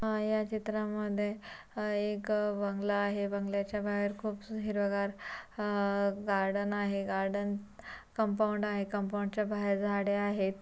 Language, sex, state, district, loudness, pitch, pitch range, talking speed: Marathi, female, Maharashtra, Pune, -33 LUFS, 205 Hz, 200-210 Hz, 135 wpm